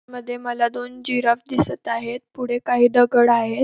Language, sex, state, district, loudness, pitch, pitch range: Marathi, female, Maharashtra, Pune, -20 LUFS, 245 Hz, 240-250 Hz